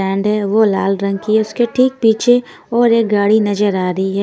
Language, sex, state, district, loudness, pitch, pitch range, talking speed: Hindi, female, Punjab, Kapurthala, -14 LUFS, 210 Hz, 200-230 Hz, 240 wpm